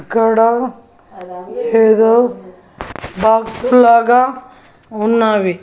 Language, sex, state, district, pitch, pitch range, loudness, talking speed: Telugu, female, Andhra Pradesh, Annamaya, 230 Hz, 220-245 Hz, -13 LUFS, 55 wpm